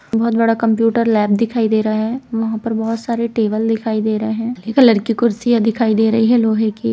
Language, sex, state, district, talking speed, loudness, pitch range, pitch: Hindi, female, Bihar, Saran, 235 wpm, -16 LUFS, 220-230 Hz, 225 Hz